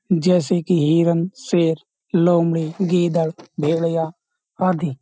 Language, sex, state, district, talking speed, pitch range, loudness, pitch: Hindi, male, Uttar Pradesh, Jyotiba Phule Nagar, 95 wpm, 165-180 Hz, -19 LUFS, 170 Hz